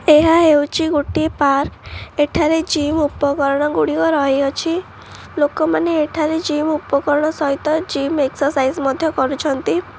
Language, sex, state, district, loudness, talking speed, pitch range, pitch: Odia, female, Odisha, Khordha, -17 LUFS, 110 wpm, 280-320 Hz, 300 Hz